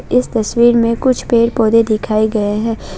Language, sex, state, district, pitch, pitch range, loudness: Hindi, female, Assam, Kamrup Metropolitan, 230 Hz, 215-235 Hz, -14 LUFS